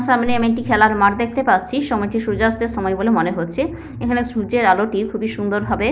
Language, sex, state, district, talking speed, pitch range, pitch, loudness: Bengali, female, West Bengal, Paschim Medinipur, 200 wpm, 205-240 Hz, 225 Hz, -18 LUFS